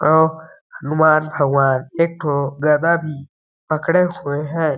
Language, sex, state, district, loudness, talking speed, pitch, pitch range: Hindi, male, Chhattisgarh, Balrampur, -18 LUFS, 140 wpm, 155 Hz, 145-160 Hz